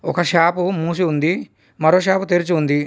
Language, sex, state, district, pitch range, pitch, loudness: Telugu, male, Telangana, Komaram Bheem, 150-180 Hz, 170 Hz, -18 LUFS